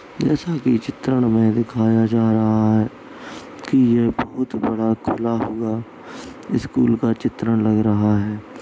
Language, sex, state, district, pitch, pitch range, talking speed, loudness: Hindi, male, Uttar Pradesh, Jalaun, 115 Hz, 110-120 Hz, 140 wpm, -19 LUFS